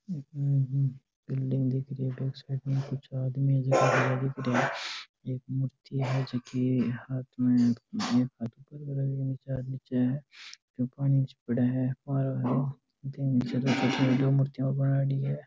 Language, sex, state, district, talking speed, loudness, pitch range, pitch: Marwari, male, Rajasthan, Nagaur, 115 wpm, -29 LUFS, 130-135 Hz, 130 Hz